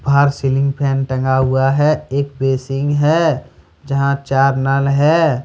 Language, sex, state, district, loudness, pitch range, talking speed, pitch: Hindi, male, Jharkhand, Deoghar, -16 LUFS, 135-145 Hz, 155 wpm, 140 Hz